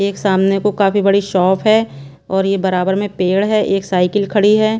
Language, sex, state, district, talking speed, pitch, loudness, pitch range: Hindi, female, Bihar, Kaimur, 210 wpm, 195 Hz, -15 LUFS, 190-205 Hz